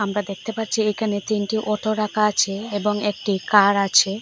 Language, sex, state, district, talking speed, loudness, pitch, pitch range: Bengali, female, Assam, Hailakandi, 170 wpm, -21 LUFS, 210 Hz, 200-215 Hz